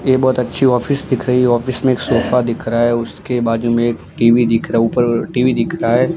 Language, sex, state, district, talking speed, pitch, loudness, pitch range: Hindi, male, Gujarat, Gandhinagar, 265 wpm, 120 Hz, -15 LUFS, 115-130 Hz